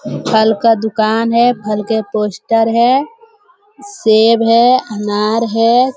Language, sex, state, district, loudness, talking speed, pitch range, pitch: Hindi, female, Bihar, Jamui, -13 LUFS, 130 wpm, 220-250 Hz, 230 Hz